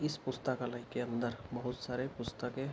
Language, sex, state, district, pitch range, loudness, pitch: Hindi, male, Bihar, Araria, 120-130 Hz, -39 LUFS, 125 Hz